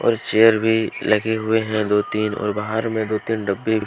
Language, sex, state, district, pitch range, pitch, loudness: Hindi, male, Jharkhand, Deoghar, 105-110 Hz, 110 Hz, -20 LUFS